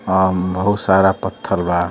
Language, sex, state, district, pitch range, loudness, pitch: Bhojpuri, male, Uttar Pradesh, Deoria, 90-95 Hz, -17 LUFS, 95 Hz